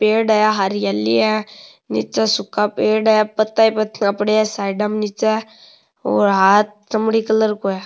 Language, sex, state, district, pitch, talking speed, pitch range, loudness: Rajasthani, male, Rajasthan, Nagaur, 215 Hz, 170 wpm, 205-220 Hz, -17 LUFS